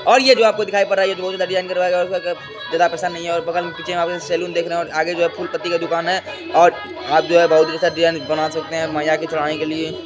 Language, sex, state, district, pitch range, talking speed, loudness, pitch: Hindi, male, Bihar, Supaul, 160-180 Hz, 220 wpm, -18 LUFS, 170 Hz